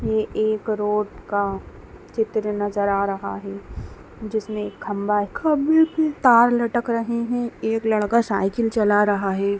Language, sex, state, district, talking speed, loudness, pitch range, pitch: Hindi, female, Bihar, Sitamarhi, 150 wpm, -21 LUFS, 200-235 Hz, 215 Hz